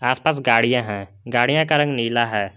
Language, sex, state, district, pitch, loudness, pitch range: Hindi, male, Jharkhand, Palamu, 120 Hz, -19 LUFS, 115-140 Hz